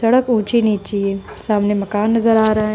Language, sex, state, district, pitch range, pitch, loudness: Hindi, female, Uttar Pradesh, Budaun, 205-230 Hz, 215 Hz, -17 LUFS